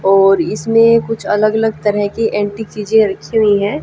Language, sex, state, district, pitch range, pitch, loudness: Hindi, female, Haryana, Jhajjar, 200-225 Hz, 210 Hz, -14 LUFS